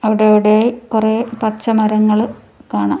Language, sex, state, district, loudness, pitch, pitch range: Malayalam, female, Kerala, Kasaragod, -15 LUFS, 215 Hz, 215-225 Hz